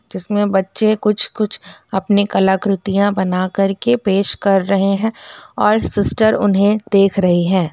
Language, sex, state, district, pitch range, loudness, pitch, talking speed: Hindi, female, Bihar, Muzaffarpur, 190-210 Hz, -15 LUFS, 200 Hz, 130 wpm